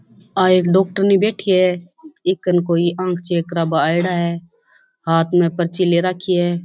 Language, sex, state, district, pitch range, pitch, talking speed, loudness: Rajasthani, female, Rajasthan, Churu, 170-185 Hz, 180 Hz, 170 wpm, -17 LUFS